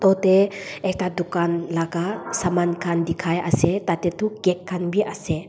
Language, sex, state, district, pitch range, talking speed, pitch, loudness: Nagamese, female, Nagaland, Dimapur, 170-195 Hz, 155 wpm, 175 Hz, -22 LUFS